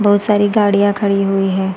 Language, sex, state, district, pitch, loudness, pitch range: Hindi, female, Chhattisgarh, Balrampur, 200 Hz, -14 LUFS, 195-205 Hz